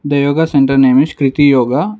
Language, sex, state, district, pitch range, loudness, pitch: English, male, Karnataka, Bangalore, 135-150 Hz, -11 LUFS, 140 Hz